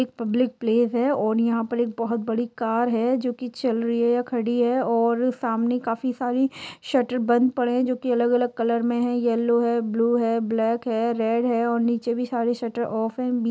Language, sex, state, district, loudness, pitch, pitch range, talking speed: Hindi, female, Jharkhand, Jamtara, -23 LUFS, 235 Hz, 230-245 Hz, 220 wpm